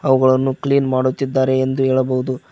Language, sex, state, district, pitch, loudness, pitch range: Kannada, male, Karnataka, Koppal, 130 Hz, -17 LUFS, 130-135 Hz